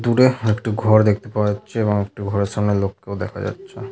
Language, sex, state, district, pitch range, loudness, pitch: Bengali, male, West Bengal, Paschim Medinipur, 100-115 Hz, -20 LUFS, 105 Hz